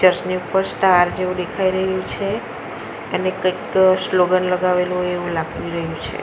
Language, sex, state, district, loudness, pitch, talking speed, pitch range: Gujarati, female, Gujarat, Valsad, -19 LUFS, 185 Hz, 165 wpm, 180-185 Hz